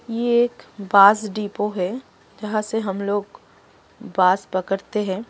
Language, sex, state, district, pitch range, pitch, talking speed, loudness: Hindi, female, Delhi, New Delhi, 195-220 Hz, 205 Hz, 135 wpm, -21 LUFS